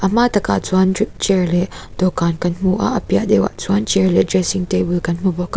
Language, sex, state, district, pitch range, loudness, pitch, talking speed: Mizo, female, Mizoram, Aizawl, 175-195 Hz, -17 LUFS, 185 Hz, 245 wpm